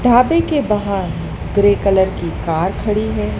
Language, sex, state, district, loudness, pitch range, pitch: Hindi, male, Madhya Pradesh, Dhar, -16 LUFS, 190-245 Hz, 205 Hz